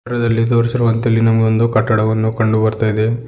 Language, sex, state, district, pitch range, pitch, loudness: Kannada, male, Karnataka, Bidar, 110-115 Hz, 115 Hz, -15 LUFS